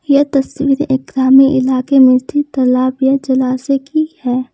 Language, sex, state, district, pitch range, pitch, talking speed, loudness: Hindi, female, Jharkhand, Ranchi, 260-275 Hz, 270 Hz, 160 wpm, -13 LUFS